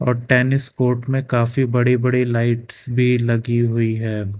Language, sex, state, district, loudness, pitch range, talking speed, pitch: Hindi, male, Karnataka, Bangalore, -19 LUFS, 115-125 Hz, 165 wpm, 125 Hz